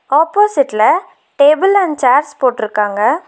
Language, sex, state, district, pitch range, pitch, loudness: Tamil, female, Tamil Nadu, Nilgiris, 220-315 Hz, 280 Hz, -13 LUFS